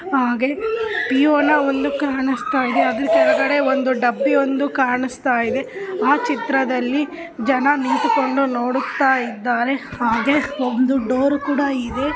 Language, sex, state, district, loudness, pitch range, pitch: Kannada, female, Karnataka, Dharwad, -19 LUFS, 255-290 Hz, 270 Hz